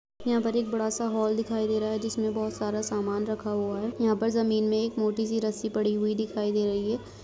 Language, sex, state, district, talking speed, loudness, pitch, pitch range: Hindi, female, Bihar, Gaya, 255 wpm, -28 LUFS, 215 Hz, 210-225 Hz